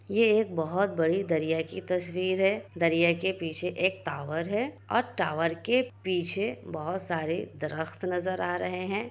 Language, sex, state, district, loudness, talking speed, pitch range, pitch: Hindi, female, Bihar, Kishanganj, -29 LUFS, 165 wpm, 165-195 Hz, 180 Hz